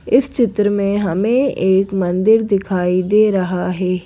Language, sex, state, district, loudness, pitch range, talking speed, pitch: Hindi, female, Madhya Pradesh, Bhopal, -16 LUFS, 185-215 Hz, 145 wpm, 200 Hz